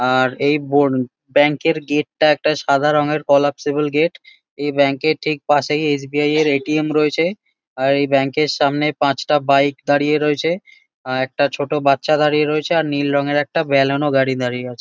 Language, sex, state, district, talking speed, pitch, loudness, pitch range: Bengali, male, West Bengal, Jalpaiguri, 180 wpm, 145 Hz, -17 LUFS, 140-150 Hz